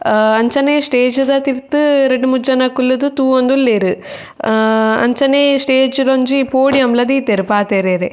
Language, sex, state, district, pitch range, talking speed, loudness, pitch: Tulu, female, Karnataka, Dakshina Kannada, 220-275 Hz, 125 wpm, -13 LUFS, 260 Hz